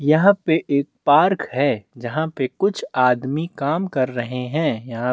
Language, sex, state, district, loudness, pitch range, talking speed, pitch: Hindi, male, Chhattisgarh, Bastar, -20 LUFS, 125-160 Hz, 175 wpm, 140 Hz